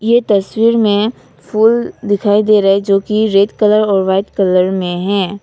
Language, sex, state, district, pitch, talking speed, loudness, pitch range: Hindi, female, Nagaland, Kohima, 205 Hz, 190 wpm, -13 LUFS, 195-215 Hz